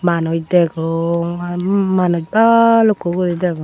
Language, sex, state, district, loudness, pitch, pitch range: Chakma, female, Tripura, Dhalai, -15 LUFS, 175 Hz, 170-190 Hz